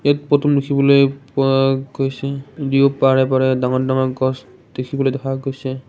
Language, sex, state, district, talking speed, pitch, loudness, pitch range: Assamese, male, Assam, Kamrup Metropolitan, 145 wpm, 135 Hz, -17 LUFS, 130-140 Hz